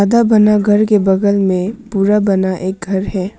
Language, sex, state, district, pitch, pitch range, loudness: Hindi, female, Arunachal Pradesh, Papum Pare, 200 Hz, 190-210 Hz, -13 LUFS